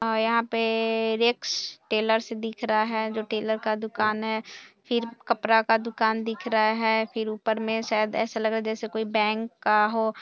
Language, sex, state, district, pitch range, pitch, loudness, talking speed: Hindi, female, Bihar, Saharsa, 220-225 Hz, 220 Hz, -26 LUFS, 190 wpm